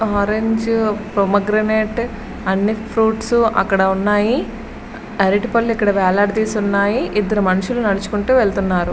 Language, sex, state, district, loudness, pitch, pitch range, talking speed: Telugu, female, Andhra Pradesh, Srikakulam, -17 LUFS, 210 Hz, 200-220 Hz, 115 wpm